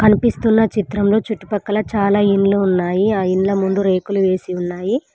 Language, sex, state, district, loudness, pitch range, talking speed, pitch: Telugu, female, Telangana, Mahabubabad, -17 LUFS, 190-215 Hz, 140 wpm, 200 Hz